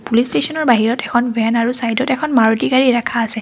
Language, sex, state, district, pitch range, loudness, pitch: Assamese, female, Assam, Kamrup Metropolitan, 230-255 Hz, -15 LUFS, 240 Hz